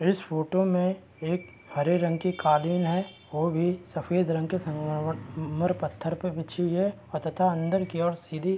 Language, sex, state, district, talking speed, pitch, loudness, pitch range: Hindi, male, Chhattisgarh, Raigarh, 190 wpm, 170 Hz, -28 LUFS, 160-180 Hz